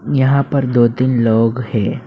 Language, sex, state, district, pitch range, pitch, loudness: Hindi, male, Assam, Hailakandi, 115-135 Hz, 125 Hz, -15 LUFS